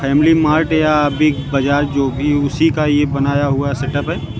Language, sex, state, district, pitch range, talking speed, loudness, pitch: Hindi, female, Uttar Pradesh, Lucknow, 140-155 Hz, 205 wpm, -15 LUFS, 145 Hz